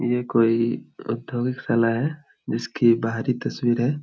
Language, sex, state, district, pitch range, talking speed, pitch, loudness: Hindi, male, Jharkhand, Jamtara, 115-125 Hz, 135 wpm, 120 Hz, -23 LUFS